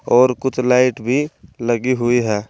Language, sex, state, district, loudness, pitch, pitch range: Hindi, male, Uttar Pradesh, Saharanpur, -17 LUFS, 125 Hz, 120-130 Hz